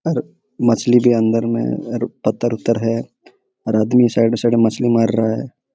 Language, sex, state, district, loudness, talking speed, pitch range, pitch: Hindi, male, Jharkhand, Sahebganj, -17 LUFS, 165 wpm, 115-125 Hz, 115 Hz